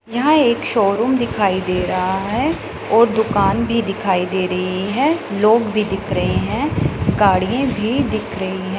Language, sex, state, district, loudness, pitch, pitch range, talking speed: Hindi, female, Punjab, Pathankot, -18 LUFS, 210 Hz, 190-235 Hz, 165 wpm